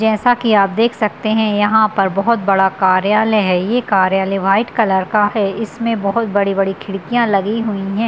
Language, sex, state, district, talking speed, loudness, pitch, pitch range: Hindi, female, Bihar, Madhepura, 210 wpm, -15 LUFS, 205 Hz, 195-220 Hz